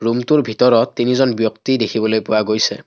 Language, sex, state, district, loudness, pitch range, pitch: Assamese, male, Assam, Kamrup Metropolitan, -16 LUFS, 110-125 Hz, 115 Hz